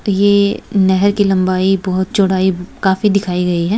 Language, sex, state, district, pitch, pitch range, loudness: Hindi, female, Bihar, Begusarai, 190 Hz, 185-200 Hz, -14 LUFS